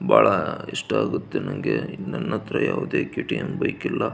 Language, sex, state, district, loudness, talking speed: Kannada, male, Karnataka, Belgaum, -24 LUFS, 175 wpm